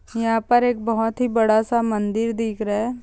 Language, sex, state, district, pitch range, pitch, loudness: Hindi, female, Andhra Pradesh, Chittoor, 220-235 Hz, 225 Hz, -21 LUFS